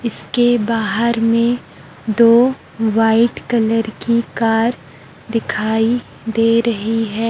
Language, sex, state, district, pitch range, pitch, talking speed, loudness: Hindi, female, Chhattisgarh, Raipur, 225-235 Hz, 230 Hz, 100 wpm, -16 LUFS